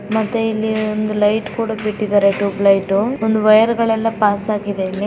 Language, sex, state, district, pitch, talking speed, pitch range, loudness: Kannada, female, Karnataka, Raichur, 215 Hz, 165 wpm, 205-220 Hz, -16 LUFS